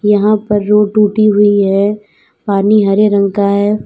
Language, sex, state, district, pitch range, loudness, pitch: Hindi, female, Uttar Pradesh, Lalitpur, 200-210 Hz, -11 LUFS, 205 Hz